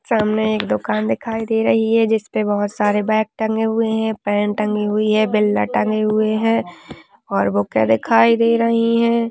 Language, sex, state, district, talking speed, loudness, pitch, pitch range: Hindi, female, Uttarakhand, Tehri Garhwal, 180 wpm, -18 LUFS, 215 Hz, 205-225 Hz